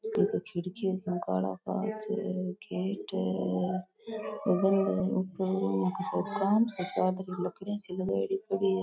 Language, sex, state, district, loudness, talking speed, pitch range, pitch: Rajasthani, female, Rajasthan, Nagaur, -31 LUFS, 80 wpm, 180-200 Hz, 190 Hz